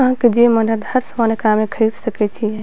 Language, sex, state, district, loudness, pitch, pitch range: Maithili, female, Bihar, Purnia, -16 LUFS, 225 Hz, 215-240 Hz